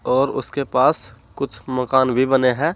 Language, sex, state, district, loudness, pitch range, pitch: Hindi, male, Uttar Pradesh, Saharanpur, -19 LUFS, 130-140 Hz, 130 Hz